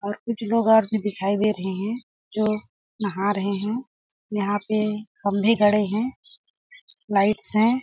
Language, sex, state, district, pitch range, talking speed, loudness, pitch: Hindi, female, Chhattisgarh, Sarguja, 205-220 Hz, 155 wpm, -23 LUFS, 210 Hz